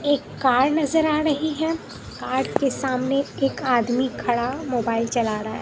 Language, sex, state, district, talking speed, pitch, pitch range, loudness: Hindi, female, Bihar, Katihar, 170 wpm, 265 Hz, 245-295 Hz, -22 LUFS